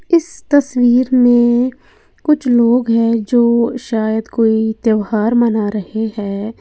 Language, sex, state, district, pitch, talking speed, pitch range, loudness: Hindi, female, Uttar Pradesh, Lalitpur, 235 Hz, 120 wpm, 220-250 Hz, -14 LUFS